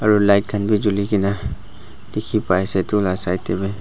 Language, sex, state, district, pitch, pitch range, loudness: Nagamese, male, Nagaland, Dimapur, 100 Hz, 95-105 Hz, -19 LUFS